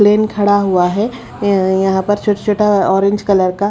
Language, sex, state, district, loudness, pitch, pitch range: Hindi, female, Haryana, Rohtak, -14 LUFS, 205 Hz, 195-210 Hz